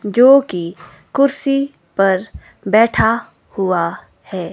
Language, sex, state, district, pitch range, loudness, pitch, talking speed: Hindi, female, Himachal Pradesh, Shimla, 175-240 Hz, -16 LUFS, 195 Hz, 95 wpm